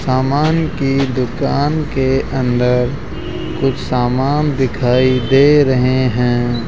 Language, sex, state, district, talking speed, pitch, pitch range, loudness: Hindi, male, Rajasthan, Jaipur, 100 wpm, 130 Hz, 125-140 Hz, -15 LUFS